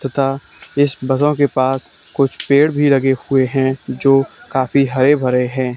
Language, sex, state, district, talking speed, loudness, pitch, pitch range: Hindi, male, Haryana, Charkhi Dadri, 165 wpm, -16 LUFS, 135 Hz, 130-140 Hz